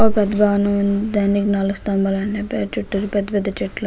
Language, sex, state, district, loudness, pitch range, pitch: Telugu, female, Andhra Pradesh, Krishna, -19 LUFS, 200-210 Hz, 205 Hz